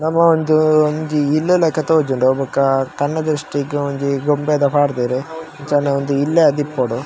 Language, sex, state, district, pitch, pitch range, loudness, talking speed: Tulu, male, Karnataka, Dakshina Kannada, 145 Hz, 140-155 Hz, -17 LUFS, 155 wpm